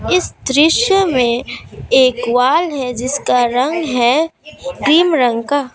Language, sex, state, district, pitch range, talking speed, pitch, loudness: Hindi, female, Assam, Kamrup Metropolitan, 250-330 Hz, 125 wpm, 270 Hz, -14 LUFS